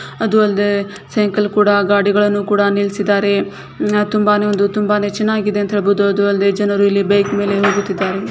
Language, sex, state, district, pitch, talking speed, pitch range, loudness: Kannada, female, Karnataka, Shimoga, 205 Hz, 150 wpm, 200-210 Hz, -15 LUFS